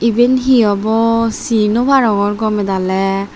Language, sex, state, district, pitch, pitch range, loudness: Chakma, female, Tripura, Dhalai, 220 Hz, 205-235 Hz, -14 LUFS